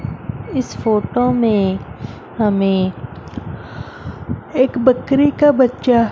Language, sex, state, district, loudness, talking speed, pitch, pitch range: Hindi, female, Chandigarh, Chandigarh, -16 LUFS, 80 wpm, 240 Hz, 210-260 Hz